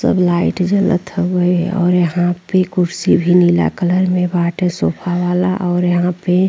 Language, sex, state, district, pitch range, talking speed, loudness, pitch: Bhojpuri, female, Uttar Pradesh, Ghazipur, 175-180 Hz, 175 wpm, -15 LUFS, 180 Hz